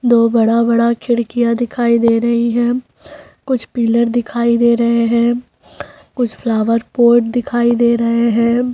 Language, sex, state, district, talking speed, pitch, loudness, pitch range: Hindi, male, Uttarakhand, Tehri Garhwal, 135 wpm, 235 Hz, -14 LUFS, 235-240 Hz